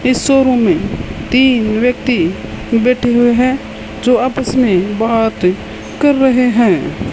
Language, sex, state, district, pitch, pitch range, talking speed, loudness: Hindi, male, Rajasthan, Bikaner, 245 Hz, 230-255 Hz, 125 wpm, -13 LUFS